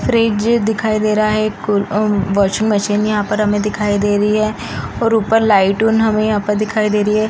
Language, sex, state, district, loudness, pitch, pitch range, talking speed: Hindi, female, Bihar, East Champaran, -15 LUFS, 215 Hz, 205-220 Hz, 195 wpm